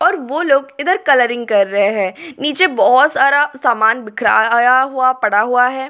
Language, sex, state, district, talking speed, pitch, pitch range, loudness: Hindi, female, Delhi, New Delhi, 175 wpm, 255 Hz, 230-285 Hz, -14 LUFS